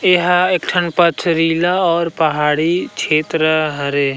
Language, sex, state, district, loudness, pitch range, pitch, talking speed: Chhattisgarhi, male, Chhattisgarh, Rajnandgaon, -15 LUFS, 155-175 Hz, 165 Hz, 115 wpm